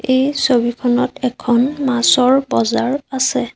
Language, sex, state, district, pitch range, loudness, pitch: Assamese, female, Assam, Sonitpur, 245-270 Hz, -16 LUFS, 255 Hz